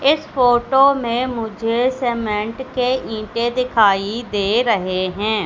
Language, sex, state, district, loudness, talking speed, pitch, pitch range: Hindi, female, Madhya Pradesh, Katni, -18 LUFS, 120 wpm, 235 Hz, 215-255 Hz